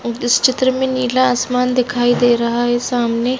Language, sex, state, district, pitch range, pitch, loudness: Hindi, female, Bihar, Bhagalpur, 240-255 Hz, 245 Hz, -16 LUFS